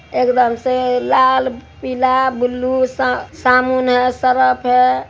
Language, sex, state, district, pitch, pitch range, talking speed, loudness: Hindi, male, Bihar, Araria, 255 Hz, 250-255 Hz, 130 wpm, -15 LUFS